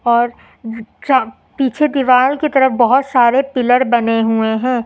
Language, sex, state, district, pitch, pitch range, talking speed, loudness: Hindi, female, Uttar Pradesh, Lucknow, 250 Hz, 235-265 Hz, 135 wpm, -14 LUFS